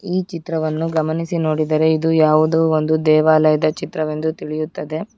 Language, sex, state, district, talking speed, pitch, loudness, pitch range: Kannada, female, Karnataka, Bangalore, 115 wpm, 155 Hz, -18 LUFS, 155-160 Hz